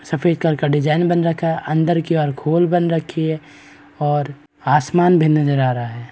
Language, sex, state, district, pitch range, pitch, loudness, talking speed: Hindi, male, Bihar, East Champaran, 145-165 Hz, 155 Hz, -18 LUFS, 215 wpm